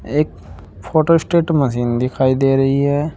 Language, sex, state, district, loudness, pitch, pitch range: Hindi, male, Uttar Pradesh, Saharanpur, -16 LUFS, 135 Hz, 120-150 Hz